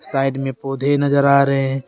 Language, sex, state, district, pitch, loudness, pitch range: Hindi, male, Jharkhand, Deoghar, 135 Hz, -17 LUFS, 135-140 Hz